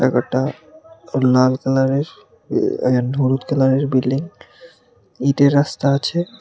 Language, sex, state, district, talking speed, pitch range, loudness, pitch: Bengali, male, Tripura, West Tripura, 105 wpm, 130-145 Hz, -18 LUFS, 135 Hz